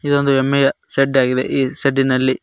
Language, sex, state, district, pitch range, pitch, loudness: Kannada, male, Karnataka, Koppal, 130-140 Hz, 135 Hz, -16 LUFS